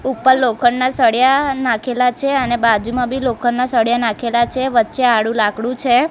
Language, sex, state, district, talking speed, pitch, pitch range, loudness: Gujarati, female, Gujarat, Gandhinagar, 155 wpm, 250 Hz, 235-260 Hz, -16 LUFS